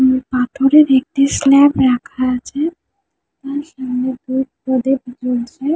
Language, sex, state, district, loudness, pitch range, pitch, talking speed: Bengali, female, West Bengal, Jhargram, -16 LUFS, 255-280 Hz, 265 Hz, 125 wpm